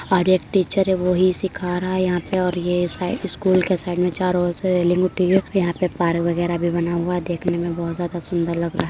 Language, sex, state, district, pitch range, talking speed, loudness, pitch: Hindi, female, Uttar Pradesh, Hamirpur, 175-185 Hz, 275 wpm, -21 LUFS, 180 Hz